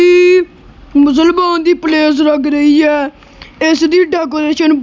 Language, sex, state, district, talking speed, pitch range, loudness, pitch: Punjabi, female, Punjab, Kapurthala, 125 wpm, 300-345 Hz, -11 LUFS, 315 Hz